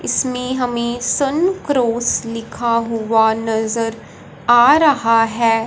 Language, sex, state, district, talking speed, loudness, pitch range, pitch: Hindi, male, Punjab, Fazilka, 95 wpm, -16 LUFS, 225-250 Hz, 235 Hz